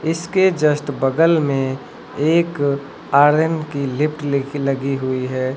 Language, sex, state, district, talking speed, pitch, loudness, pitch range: Hindi, male, Uttar Pradesh, Lucknow, 130 wpm, 145 Hz, -18 LUFS, 135-160 Hz